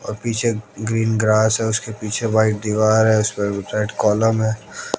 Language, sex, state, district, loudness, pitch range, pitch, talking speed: Hindi, male, Haryana, Jhajjar, -19 LUFS, 105-110 Hz, 110 Hz, 170 wpm